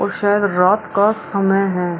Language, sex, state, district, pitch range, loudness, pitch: Hindi, female, Bihar, Araria, 185-205 Hz, -16 LUFS, 200 Hz